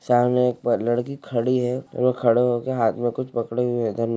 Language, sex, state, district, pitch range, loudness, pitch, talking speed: Hindi, male, Chhattisgarh, Raigarh, 115-125 Hz, -22 LUFS, 120 Hz, 245 wpm